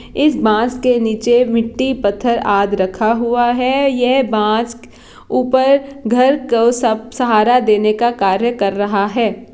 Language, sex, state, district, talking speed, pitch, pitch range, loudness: Hindi, female, Bihar, Jahanabad, 145 wpm, 235 Hz, 215-250 Hz, -15 LUFS